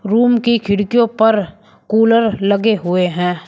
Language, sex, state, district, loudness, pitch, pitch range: Hindi, male, Uttar Pradesh, Shamli, -14 LUFS, 215 Hz, 200-225 Hz